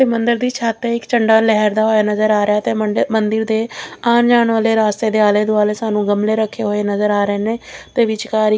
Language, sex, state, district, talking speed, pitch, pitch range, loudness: Punjabi, female, Chandigarh, Chandigarh, 215 wpm, 220 Hz, 210-230 Hz, -16 LUFS